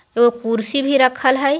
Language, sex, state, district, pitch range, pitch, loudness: Hindi, female, Bihar, Jahanabad, 235-275 Hz, 260 Hz, -16 LUFS